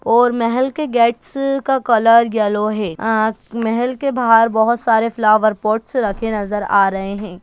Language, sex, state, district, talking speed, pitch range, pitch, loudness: Hindi, female, Bihar, Jahanabad, 170 wpm, 215-240 Hz, 225 Hz, -16 LUFS